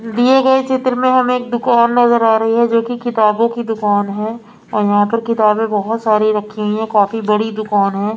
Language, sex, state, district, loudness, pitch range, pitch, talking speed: Hindi, female, Maharashtra, Mumbai Suburban, -14 LUFS, 210-240 Hz, 225 Hz, 215 wpm